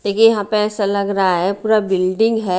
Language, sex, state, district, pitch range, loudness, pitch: Hindi, female, Bihar, Patna, 190-220 Hz, -16 LUFS, 200 Hz